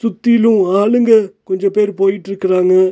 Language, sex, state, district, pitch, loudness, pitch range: Tamil, male, Tamil Nadu, Nilgiris, 200 Hz, -13 LUFS, 190-225 Hz